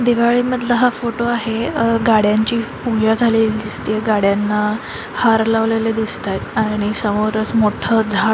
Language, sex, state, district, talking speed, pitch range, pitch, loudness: Marathi, female, Maharashtra, Dhule, 130 wpm, 215-230 Hz, 225 Hz, -17 LUFS